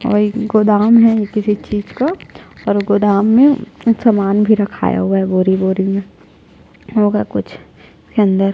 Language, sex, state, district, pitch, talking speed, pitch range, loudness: Hindi, female, Chhattisgarh, Jashpur, 210 Hz, 145 wpm, 200-220 Hz, -14 LUFS